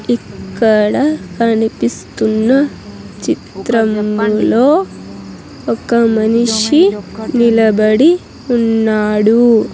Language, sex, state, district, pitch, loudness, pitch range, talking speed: Telugu, female, Andhra Pradesh, Sri Satya Sai, 225 Hz, -13 LUFS, 215-240 Hz, 45 wpm